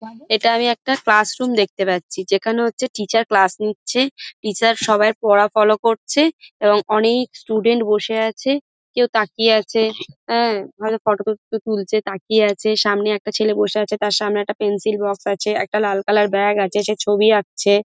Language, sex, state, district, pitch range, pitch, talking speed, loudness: Bengali, female, West Bengal, Dakshin Dinajpur, 205-225 Hz, 215 Hz, 170 wpm, -18 LUFS